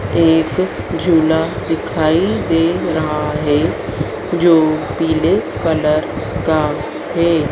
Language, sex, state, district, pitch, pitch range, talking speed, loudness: Hindi, female, Madhya Pradesh, Dhar, 160 Hz, 150-165 Hz, 90 wpm, -16 LUFS